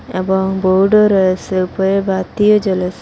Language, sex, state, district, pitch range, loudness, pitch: Bengali, female, Assam, Hailakandi, 185-195 Hz, -14 LUFS, 190 Hz